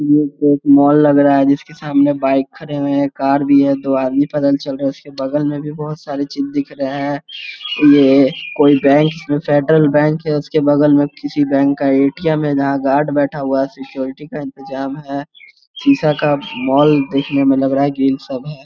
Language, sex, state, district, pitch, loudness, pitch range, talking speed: Hindi, male, Bihar, Saran, 145 Hz, -15 LUFS, 140-150 Hz, 220 wpm